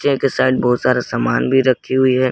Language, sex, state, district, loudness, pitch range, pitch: Hindi, male, Jharkhand, Garhwa, -16 LUFS, 125-130 Hz, 130 Hz